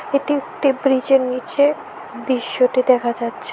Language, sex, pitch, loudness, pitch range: Bengali, female, 260 Hz, -18 LUFS, 255-280 Hz